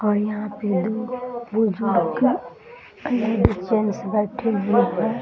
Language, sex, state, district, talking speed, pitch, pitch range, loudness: Hindi, female, Bihar, Muzaffarpur, 115 wpm, 220 Hz, 210-240 Hz, -22 LUFS